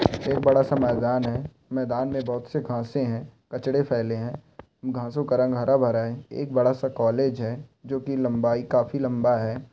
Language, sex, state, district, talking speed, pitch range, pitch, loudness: Hindi, male, Bihar, Bhagalpur, 165 wpm, 120-135 Hz, 125 Hz, -25 LUFS